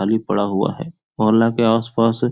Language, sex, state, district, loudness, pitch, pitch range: Hindi, male, Bihar, Supaul, -18 LUFS, 115 Hz, 110-125 Hz